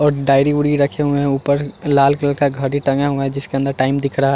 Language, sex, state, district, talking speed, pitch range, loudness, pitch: Hindi, male, Chandigarh, Chandigarh, 275 wpm, 135-145 Hz, -17 LUFS, 140 Hz